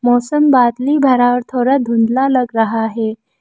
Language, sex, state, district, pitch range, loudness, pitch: Hindi, female, Arunachal Pradesh, Lower Dibang Valley, 230-265 Hz, -14 LUFS, 245 Hz